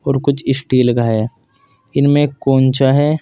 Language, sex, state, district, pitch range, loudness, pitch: Hindi, male, Uttar Pradesh, Saharanpur, 125-140 Hz, -15 LUFS, 135 Hz